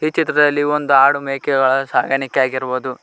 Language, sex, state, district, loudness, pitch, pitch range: Kannada, male, Karnataka, Koppal, -16 LUFS, 135 Hz, 130-145 Hz